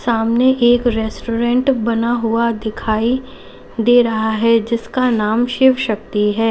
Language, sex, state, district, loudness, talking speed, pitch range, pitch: Hindi, female, Uttar Pradesh, Lalitpur, -16 LUFS, 130 wpm, 220-245 Hz, 230 Hz